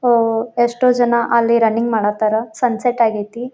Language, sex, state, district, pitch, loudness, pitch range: Kannada, female, Karnataka, Belgaum, 235 Hz, -16 LUFS, 225-240 Hz